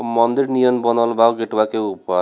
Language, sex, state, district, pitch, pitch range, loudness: Bhojpuri, male, Bihar, Gopalganj, 115 Hz, 110-120 Hz, -17 LUFS